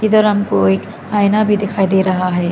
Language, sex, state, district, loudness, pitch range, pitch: Hindi, female, Arunachal Pradesh, Lower Dibang Valley, -15 LUFS, 180-210 Hz, 200 Hz